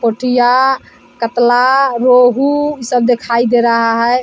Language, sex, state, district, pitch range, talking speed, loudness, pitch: Hindi, female, Bihar, Vaishali, 235-255 Hz, 125 wpm, -12 LUFS, 245 Hz